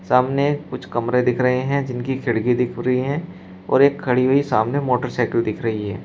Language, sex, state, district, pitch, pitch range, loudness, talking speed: Hindi, male, Uttar Pradesh, Shamli, 125 Hz, 120-135 Hz, -20 LUFS, 200 wpm